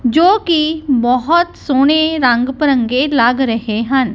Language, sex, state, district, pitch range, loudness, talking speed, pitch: Punjabi, female, Punjab, Kapurthala, 245-315 Hz, -13 LUFS, 115 wpm, 265 Hz